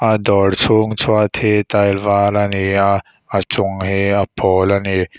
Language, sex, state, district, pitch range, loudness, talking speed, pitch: Mizo, male, Mizoram, Aizawl, 95-105 Hz, -15 LUFS, 195 wpm, 100 Hz